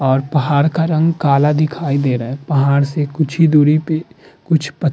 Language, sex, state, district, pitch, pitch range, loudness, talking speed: Hindi, male, Uttar Pradesh, Muzaffarnagar, 150 Hz, 140-160 Hz, -15 LUFS, 220 wpm